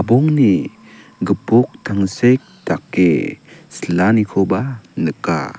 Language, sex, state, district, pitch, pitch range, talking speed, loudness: Garo, male, Meghalaya, South Garo Hills, 110 Hz, 95-125 Hz, 55 wpm, -17 LUFS